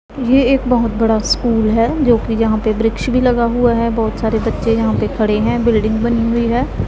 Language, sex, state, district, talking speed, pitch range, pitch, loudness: Hindi, female, Punjab, Pathankot, 225 wpm, 225-240 Hz, 230 Hz, -15 LUFS